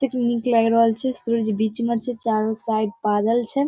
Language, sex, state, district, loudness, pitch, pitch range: Maithili, female, Bihar, Saharsa, -21 LUFS, 230 Hz, 220-240 Hz